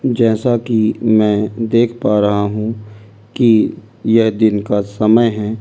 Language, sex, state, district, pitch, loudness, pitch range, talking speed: Hindi, male, Delhi, New Delhi, 110 Hz, -15 LUFS, 105-115 Hz, 150 wpm